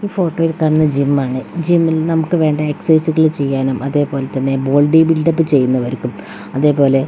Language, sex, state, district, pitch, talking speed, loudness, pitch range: Malayalam, female, Kerala, Wayanad, 150 Hz, 185 wpm, -15 LUFS, 135-160 Hz